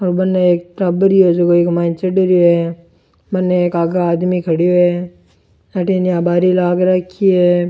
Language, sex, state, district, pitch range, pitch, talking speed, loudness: Rajasthani, male, Rajasthan, Churu, 175-185 Hz, 180 Hz, 170 wpm, -14 LUFS